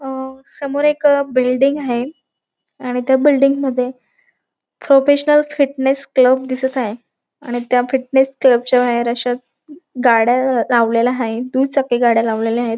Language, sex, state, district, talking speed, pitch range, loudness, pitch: Marathi, female, Maharashtra, Dhule, 130 wpm, 245-275 Hz, -16 LUFS, 255 Hz